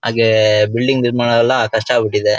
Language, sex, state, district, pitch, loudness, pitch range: Kannada, male, Karnataka, Shimoga, 115 Hz, -14 LUFS, 110-120 Hz